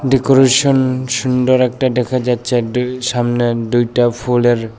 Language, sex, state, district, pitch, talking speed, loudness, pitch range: Bengali, male, Tripura, West Tripura, 125 Hz, 125 wpm, -14 LUFS, 120-130 Hz